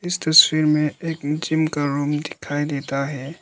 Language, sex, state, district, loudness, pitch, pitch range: Hindi, male, Arunachal Pradesh, Lower Dibang Valley, -20 LUFS, 150 Hz, 145-160 Hz